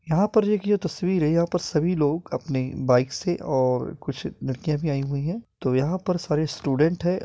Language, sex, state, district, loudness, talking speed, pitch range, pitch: Hindi, male, Bihar, Purnia, -24 LUFS, 225 wpm, 140-180 Hz, 155 Hz